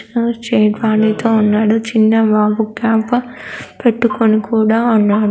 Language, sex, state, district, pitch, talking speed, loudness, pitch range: Telugu, female, Andhra Pradesh, Krishna, 220 Hz, 80 wpm, -14 LUFS, 215-230 Hz